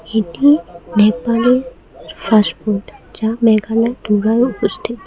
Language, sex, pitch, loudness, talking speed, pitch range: Bengali, female, 220 Hz, -15 LUFS, 60 wpm, 210-235 Hz